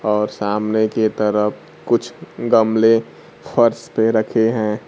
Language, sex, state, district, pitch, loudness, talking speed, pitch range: Hindi, male, Bihar, Kaimur, 110 Hz, -18 LUFS, 120 wpm, 105-115 Hz